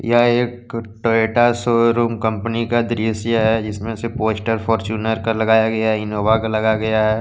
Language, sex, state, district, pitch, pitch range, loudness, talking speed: Hindi, male, Jharkhand, Deoghar, 110 Hz, 110-115 Hz, -18 LUFS, 150 wpm